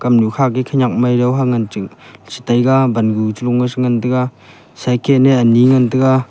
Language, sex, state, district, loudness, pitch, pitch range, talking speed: Wancho, male, Arunachal Pradesh, Longding, -14 LUFS, 125 Hz, 120-130 Hz, 170 wpm